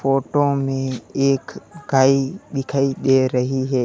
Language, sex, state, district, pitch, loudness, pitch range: Hindi, male, Uttar Pradesh, Lalitpur, 135 Hz, -19 LUFS, 130-135 Hz